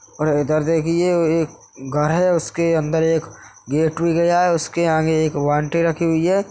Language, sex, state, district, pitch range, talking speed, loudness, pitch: Hindi, male, Uttar Pradesh, Hamirpur, 155-170 Hz, 195 wpm, -19 LUFS, 165 Hz